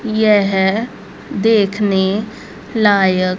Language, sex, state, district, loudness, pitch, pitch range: Hindi, female, Haryana, Rohtak, -15 LUFS, 205 Hz, 190-220 Hz